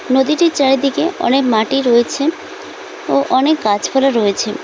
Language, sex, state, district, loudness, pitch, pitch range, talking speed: Bengali, female, West Bengal, Cooch Behar, -14 LUFS, 270 Hz, 245-310 Hz, 115 wpm